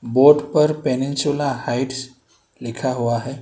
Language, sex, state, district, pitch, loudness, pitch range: Hindi, male, Karnataka, Bangalore, 130 Hz, -19 LUFS, 125-145 Hz